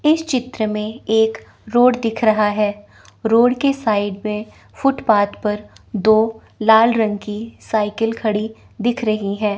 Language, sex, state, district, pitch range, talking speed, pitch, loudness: Hindi, female, Chandigarh, Chandigarh, 210-235 Hz, 145 wpm, 220 Hz, -18 LUFS